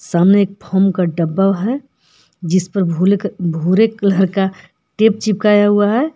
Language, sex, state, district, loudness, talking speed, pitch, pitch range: Hindi, female, Jharkhand, Palamu, -15 LUFS, 155 wpm, 195 Hz, 180-205 Hz